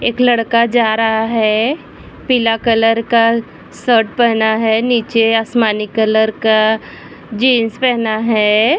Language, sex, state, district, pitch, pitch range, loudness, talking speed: Hindi, female, Bihar, Vaishali, 225 Hz, 220-235 Hz, -14 LUFS, 125 wpm